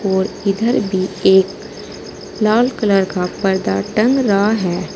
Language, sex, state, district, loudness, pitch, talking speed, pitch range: Hindi, female, Uttar Pradesh, Saharanpur, -16 LUFS, 195 Hz, 135 wpm, 190-215 Hz